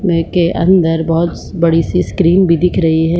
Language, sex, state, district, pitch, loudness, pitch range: Hindi, female, Jharkhand, Sahebganj, 170 Hz, -13 LUFS, 165-175 Hz